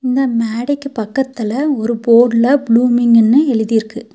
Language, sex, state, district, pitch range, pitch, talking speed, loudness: Tamil, female, Tamil Nadu, Nilgiris, 230-265 Hz, 235 Hz, 100 wpm, -14 LUFS